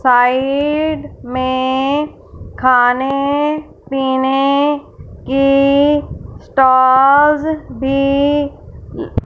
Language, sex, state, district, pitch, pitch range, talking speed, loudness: Hindi, female, Punjab, Fazilka, 275 Hz, 260-290 Hz, 45 wpm, -14 LUFS